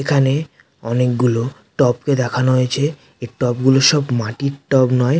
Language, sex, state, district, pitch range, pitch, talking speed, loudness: Bengali, male, West Bengal, North 24 Parganas, 125-140 Hz, 130 Hz, 160 wpm, -17 LUFS